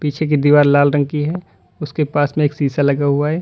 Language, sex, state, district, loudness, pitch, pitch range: Hindi, male, Uttar Pradesh, Lalitpur, -16 LUFS, 145 Hz, 145-150 Hz